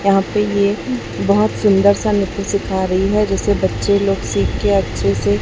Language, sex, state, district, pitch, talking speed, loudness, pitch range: Hindi, male, Chhattisgarh, Raipur, 200 Hz, 190 wpm, -16 LUFS, 190-205 Hz